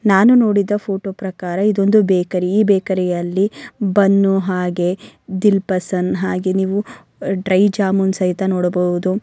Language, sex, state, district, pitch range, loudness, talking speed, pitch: Kannada, female, Karnataka, Bellary, 185-200 Hz, -17 LUFS, 125 wpm, 190 Hz